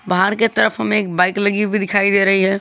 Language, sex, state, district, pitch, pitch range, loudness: Hindi, male, Jharkhand, Garhwa, 200 Hz, 190-205 Hz, -16 LUFS